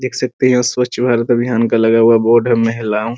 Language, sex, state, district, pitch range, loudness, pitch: Hindi, male, Bihar, Muzaffarpur, 115-125 Hz, -14 LUFS, 120 Hz